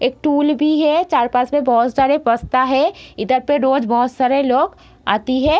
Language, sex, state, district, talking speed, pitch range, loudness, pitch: Hindi, female, Bihar, Darbhanga, 180 wpm, 250-290 Hz, -16 LUFS, 265 Hz